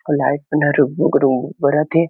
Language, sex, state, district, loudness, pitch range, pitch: Chhattisgarhi, male, Chhattisgarh, Kabirdham, -17 LUFS, 140-155 Hz, 145 Hz